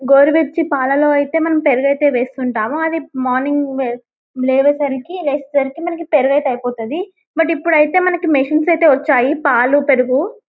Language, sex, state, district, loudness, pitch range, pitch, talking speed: Telugu, female, Telangana, Karimnagar, -15 LUFS, 265-320 Hz, 285 Hz, 115 wpm